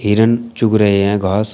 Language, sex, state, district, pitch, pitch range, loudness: Hindi, male, Uttar Pradesh, Shamli, 105 Hz, 100-115 Hz, -14 LUFS